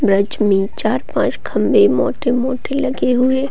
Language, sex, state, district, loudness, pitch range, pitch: Hindi, female, Bihar, Gopalganj, -16 LUFS, 200-265 Hz, 250 Hz